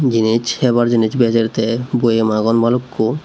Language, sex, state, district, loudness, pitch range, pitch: Chakma, male, Tripura, Unakoti, -16 LUFS, 110-125 Hz, 115 Hz